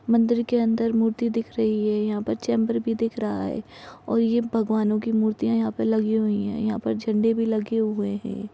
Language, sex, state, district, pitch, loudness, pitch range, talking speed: Hindi, female, Uttar Pradesh, Ghazipur, 220 Hz, -24 LUFS, 215-230 Hz, 225 wpm